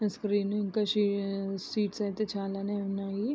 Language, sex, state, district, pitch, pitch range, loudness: Telugu, female, Andhra Pradesh, Srikakulam, 205 Hz, 195-210 Hz, -31 LUFS